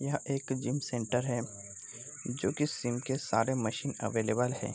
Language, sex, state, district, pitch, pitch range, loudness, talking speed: Hindi, male, Bihar, Sitamarhi, 125 Hz, 115-135 Hz, -33 LUFS, 175 wpm